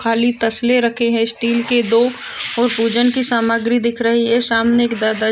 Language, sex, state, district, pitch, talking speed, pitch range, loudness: Hindi, female, Chhattisgarh, Kabirdham, 235 Hz, 190 wpm, 230-240 Hz, -16 LUFS